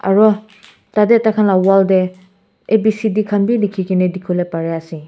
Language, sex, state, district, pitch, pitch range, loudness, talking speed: Nagamese, male, Nagaland, Kohima, 195 Hz, 185-215 Hz, -15 LUFS, 200 wpm